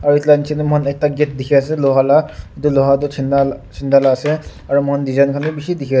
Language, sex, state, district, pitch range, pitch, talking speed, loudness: Nagamese, male, Nagaland, Dimapur, 140-150 Hz, 140 Hz, 240 wpm, -15 LUFS